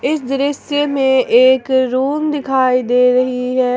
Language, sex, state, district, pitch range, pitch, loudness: Hindi, female, Jharkhand, Ranchi, 255-275 Hz, 260 Hz, -14 LUFS